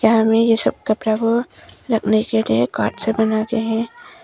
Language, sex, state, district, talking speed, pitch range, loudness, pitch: Hindi, female, Arunachal Pradesh, Longding, 170 wpm, 215-225 Hz, -18 LUFS, 225 Hz